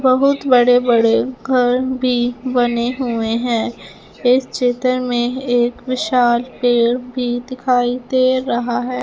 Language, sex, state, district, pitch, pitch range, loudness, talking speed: Hindi, female, Punjab, Fazilka, 245 Hz, 240-255 Hz, -17 LUFS, 125 wpm